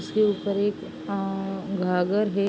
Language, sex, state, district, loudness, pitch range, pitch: Hindi, female, Uttar Pradesh, Jalaun, -26 LUFS, 195-205 Hz, 200 Hz